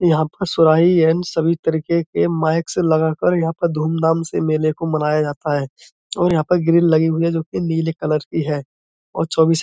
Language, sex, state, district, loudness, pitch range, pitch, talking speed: Hindi, male, Uttar Pradesh, Budaun, -18 LUFS, 155-170 Hz, 160 Hz, 210 wpm